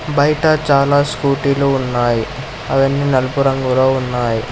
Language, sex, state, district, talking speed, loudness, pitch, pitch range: Telugu, male, Telangana, Hyderabad, 120 wpm, -15 LUFS, 135 Hz, 125-140 Hz